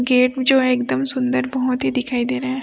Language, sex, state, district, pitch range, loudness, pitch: Hindi, female, Chhattisgarh, Raipur, 240-260 Hz, -18 LUFS, 255 Hz